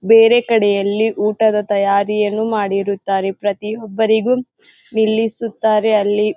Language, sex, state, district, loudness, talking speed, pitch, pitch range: Kannada, female, Karnataka, Bijapur, -16 LUFS, 85 wpm, 215 Hz, 205-220 Hz